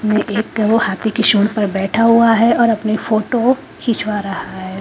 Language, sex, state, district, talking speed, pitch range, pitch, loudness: Hindi, female, Haryana, Charkhi Dadri, 200 wpm, 205-230 Hz, 215 Hz, -15 LUFS